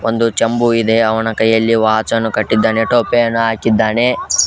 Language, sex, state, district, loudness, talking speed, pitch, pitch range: Kannada, male, Karnataka, Koppal, -14 LUFS, 145 wpm, 115 Hz, 110-115 Hz